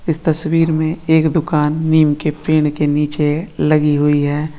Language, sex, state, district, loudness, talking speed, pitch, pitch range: Marwari, female, Rajasthan, Nagaur, -15 LUFS, 170 wpm, 155 Hz, 150-160 Hz